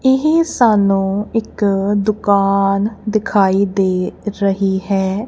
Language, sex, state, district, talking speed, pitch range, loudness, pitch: Punjabi, female, Punjab, Kapurthala, 90 wpm, 195-215 Hz, -16 LUFS, 200 Hz